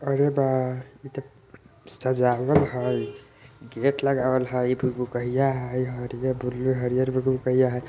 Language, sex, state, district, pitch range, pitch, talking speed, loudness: Bajjika, female, Bihar, Vaishali, 125-135 Hz, 130 Hz, 145 wpm, -25 LUFS